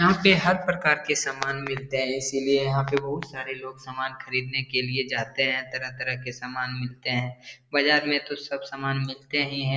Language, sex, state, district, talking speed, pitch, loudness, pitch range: Hindi, male, Bihar, Darbhanga, 205 wpm, 135 Hz, -26 LUFS, 130-140 Hz